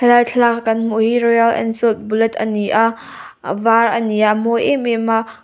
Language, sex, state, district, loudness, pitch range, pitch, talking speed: Mizo, female, Mizoram, Aizawl, -16 LUFS, 220-235 Hz, 225 Hz, 240 wpm